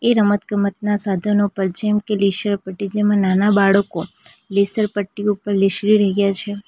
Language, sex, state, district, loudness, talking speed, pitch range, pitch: Gujarati, female, Gujarat, Valsad, -18 LUFS, 145 wpm, 195-210 Hz, 205 Hz